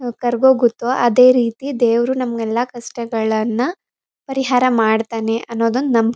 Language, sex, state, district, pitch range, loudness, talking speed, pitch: Kannada, female, Karnataka, Mysore, 230-255 Hz, -17 LUFS, 115 wpm, 240 Hz